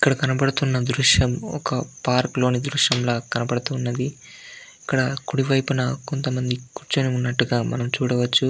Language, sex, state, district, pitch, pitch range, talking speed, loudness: Telugu, male, Andhra Pradesh, Anantapur, 130 Hz, 125-135 Hz, 105 wpm, -22 LUFS